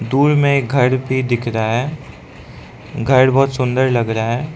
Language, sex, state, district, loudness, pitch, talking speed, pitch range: Hindi, male, Arunachal Pradesh, Lower Dibang Valley, -16 LUFS, 130 Hz, 170 wpm, 120-140 Hz